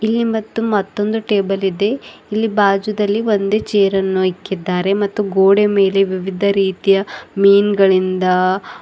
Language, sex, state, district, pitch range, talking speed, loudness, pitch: Kannada, female, Karnataka, Bidar, 190-210 Hz, 120 wpm, -16 LUFS, 200 Hz